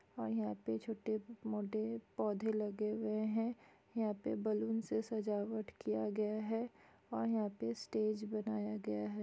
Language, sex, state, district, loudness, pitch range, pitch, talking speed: Hindi, female, Chhattisgarh, Sukma, -40 LUFS, 205-220 Hz, 215 Hz, 160 wpm